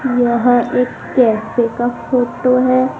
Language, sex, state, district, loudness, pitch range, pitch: Hindi, female, Madhya Pradesh, Dhar, -15 LUFS, 240-255 Hz, 245 Hz